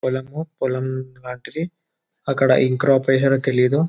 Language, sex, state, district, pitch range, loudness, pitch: Telugu, male, Telangana, Nalgonda, 130-140 Hz, -20 LUFS, 130 Hz